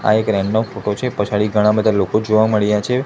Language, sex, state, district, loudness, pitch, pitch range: Gujarati, male, Gujarat, Gandhinagar, -17 LUFS, 105 Hz, 105-110 Hz